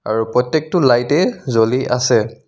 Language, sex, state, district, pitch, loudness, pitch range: Assamese, male, Assam, Kamrup Metropolitan, 125 Hz, -16 LUFS, 120-150 Hz